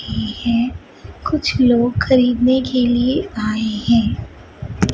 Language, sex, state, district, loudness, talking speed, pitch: Hindi, female, Chhattisgarh, Raipur, -17 LUFS, 95 wpm, 235 Hz